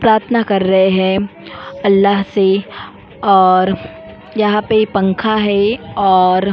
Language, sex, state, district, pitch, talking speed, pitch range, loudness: Hindi, female, Goa, North and South Goa, 200 Hz, 120 wpm, 190-210 Hz, -14 LUFS